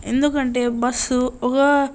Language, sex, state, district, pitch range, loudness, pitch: Telugu, male, Andhra Pradesh, Srikakulam, 245-275 Hz, -19 LUFS, 255 Hz